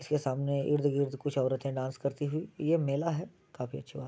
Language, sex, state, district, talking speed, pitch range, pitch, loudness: Hindi, male, Bihar, Muzaffarpur, 220 wpm, 135-150 Hz, 140 Hz, -32 LUFS